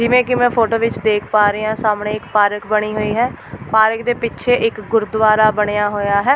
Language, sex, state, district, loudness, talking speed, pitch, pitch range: Punjabi, female, Delhi, New Delhi, -16 LUFS, 215 wpm, 215 Hz, 210-230 Hz